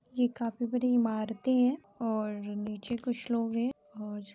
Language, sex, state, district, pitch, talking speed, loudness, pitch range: Hindi, female, Chhattisgarh, Raigarh, 230 Hz, 150 wpm, -32 LUFS, 210-245 Hz